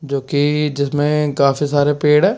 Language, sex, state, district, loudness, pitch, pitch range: Hindi, male, Delhi, New Delhi, -16 LUFS, 145 Hz, 140-150 Hz